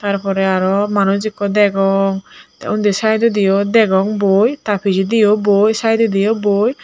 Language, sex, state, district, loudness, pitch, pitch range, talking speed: Chakma, female, Tripura, Dhalai, -14 LUFS, 205 Hz, 195-215 Hz, 140 wpm